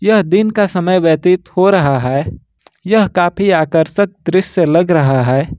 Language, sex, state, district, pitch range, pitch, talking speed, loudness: Hindi, male, Jharkhand, Ranchi, 160-195 Hz, 180 Hz, 160 wpm, -13 LUFS